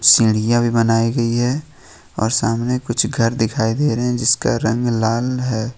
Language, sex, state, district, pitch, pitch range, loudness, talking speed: Hindi, male, Jharkhand, Ranchi, 115 Hz, 115-120 Hz, -17 LUFS, 175 wpm